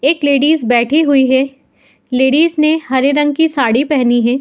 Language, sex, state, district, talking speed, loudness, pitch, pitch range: Hindi, female, Uttar Pradesh, Muzaffarnagar, 175 wpm, -13 LUFS, 275 Hz, 260-300 Hz